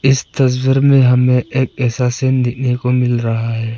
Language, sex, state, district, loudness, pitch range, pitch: Hindi, male, Arunachal Pradesh, Papum Pare, -14 LUFS, 120-130 Hz, 125 Hz